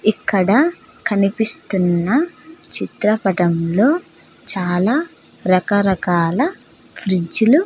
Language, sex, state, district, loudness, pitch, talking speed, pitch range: Telugu, female, Andhra Pradesh, Sri Satya Sai, -18 LUFS, 205 Hz, 65 wpm, 185-285 Hz